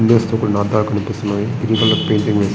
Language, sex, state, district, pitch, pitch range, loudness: Telugu, male, Andhra Pradesh, Srikakulam, 105 Hz, 105-110 Hz, -17 LUFS